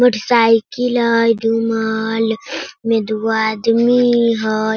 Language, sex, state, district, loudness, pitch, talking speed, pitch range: Hindi, female, Bihar, Sitamarhi, -16 LUFS, 225 Hz, 115 wpm, 220-235 Hz